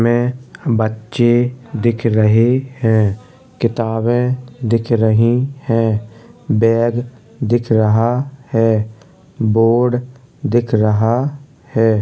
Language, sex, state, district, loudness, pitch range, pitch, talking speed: Hindi, male, Uttar Pradesh, Jalaun, -16 LUFS, 110-125 Hz, 115 Hz, 85 wpm